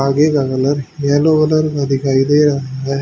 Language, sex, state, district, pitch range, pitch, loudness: Hindi, male, Haryana, Charkhi Dadri, 135-150 Hz, 140 Hz, -15 LUFS